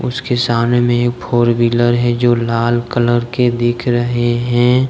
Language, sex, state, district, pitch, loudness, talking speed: Hindi, male, Jharkhand, Deoghar, 120 Hz, -15 LUFS, 185 wpm